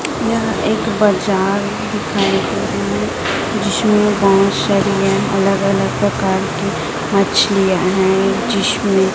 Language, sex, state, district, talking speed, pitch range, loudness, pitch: Hindi, female, Chhattisgarh, Raipur, 105 wpm, 195-205 Hz, -15 LUFS, 195 Hz